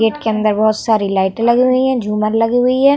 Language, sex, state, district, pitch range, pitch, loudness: Hindi, female, Bihar, Vaishali, 215-250 Hz, 225 Hz, -14 LUFS